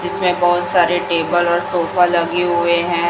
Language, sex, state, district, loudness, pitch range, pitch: Hindi, female, Chhattisgarh, Raipur, -16 LUFS, 170-175 Hz, 175 Hz